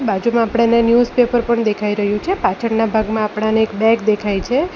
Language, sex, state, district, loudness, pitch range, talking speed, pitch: Gujarati, female, Gujarat, Valsad, -16 LUFS, 210-235 Hz, 175 wpm, 225 Hz